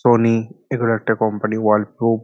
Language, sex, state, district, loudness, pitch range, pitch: Bengali, male, West Bengal, North 24 Parganas, -19 LUFS, 110-115 Hz, 115 Hz